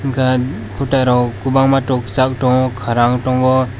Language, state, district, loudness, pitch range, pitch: Kokborok, Tripura, West Tripura, -15 LUFS, 125-130 Hz, 130 Hz